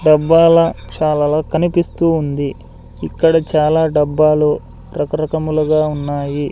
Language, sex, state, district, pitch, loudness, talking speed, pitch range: Telugu, male, Andhra Pradesh, Sri Satya Sai, 155 Hz, -15 LUFS, 85 wpm, 150-160 Hz